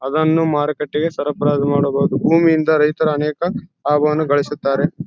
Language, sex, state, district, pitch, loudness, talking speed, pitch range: Kannada, male, Karnataka, Bellary, 150 Hz, -17 LUFS, 120 wpm, 145-160 Hz